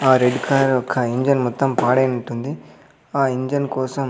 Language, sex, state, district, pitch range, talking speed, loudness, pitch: Telugu, male, Andhra Pradesh, Sri Satya Sai, 125-135 Hz, 145 wpm, -19 LUFS, 130 Hz